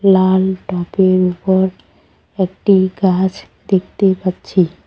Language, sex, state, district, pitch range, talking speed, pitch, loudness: Bengali, female, West Bengal, Cooch Behar, 185-190 Hz, 85 wpm, 190 Hz, -15 LUFS